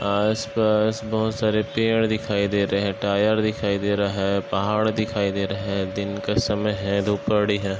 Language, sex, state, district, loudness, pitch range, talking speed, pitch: Hindi, male, Jharkhand, Sahebganj, -23 LUFS, 100-110 Hz, 175 wpm, 105 Hz